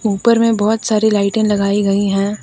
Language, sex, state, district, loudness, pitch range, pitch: Hindi, female, Jharkhand, Deoghar, -15 LUFS, 200-220 Hz, 210 Hz